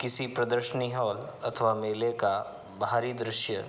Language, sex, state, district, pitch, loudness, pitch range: Hindi, male, Uttar Pradesh, Hamirpur, 120 Hz, -30 LUFS, 110-125 Hz